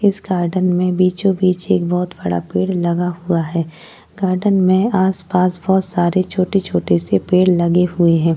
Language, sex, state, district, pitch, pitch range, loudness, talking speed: Hindi, female, Uttar Pradesh, Jyotiba Phule Nagar, 180 Hz, 175-190 Hz, -16 LUFS, 165 wpm